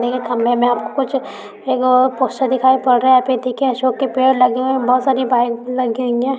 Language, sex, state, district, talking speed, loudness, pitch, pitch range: Hindi, female, Rajasthan, Nagaur, 205 wpm, -16 LUFS, 255 Hz, 245-260 Hz